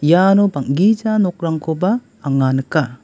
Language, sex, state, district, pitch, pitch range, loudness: Garo, male, Meghalaya, West Garo Hills, 165 Hz, 140-195 Hz, -16 LUFS